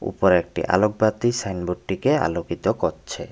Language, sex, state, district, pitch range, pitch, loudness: Bengali, male, Tripura, West Tripura, 90-110 Hz, 105 Hz, -22 LUFS